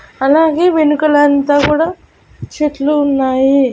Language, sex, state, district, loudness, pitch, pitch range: Telugu, female, Andhra Pradesh, Annamaya, -12 LUFS, 290 Hz, 275-310 Hz